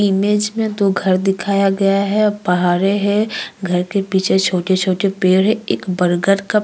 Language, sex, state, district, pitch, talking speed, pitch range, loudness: Hindi, female, Uttarakhand, Tehri Garhwal, 195 Hz, 190 wpm, 185-205 Hz, -16 LUFS